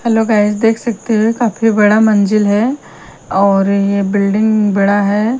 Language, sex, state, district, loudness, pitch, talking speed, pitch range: Hindi, female, Punjab, Kapurthala, -13 LUFS, 210 Hz, 155 wpm, 200-225 Hz